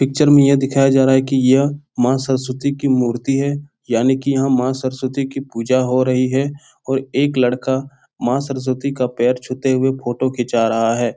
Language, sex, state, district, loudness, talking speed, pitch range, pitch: Hindi, male, Bihar, Jahanabad, -17 LUFS, 200 wpm, 125-135 Hz, 130 Hz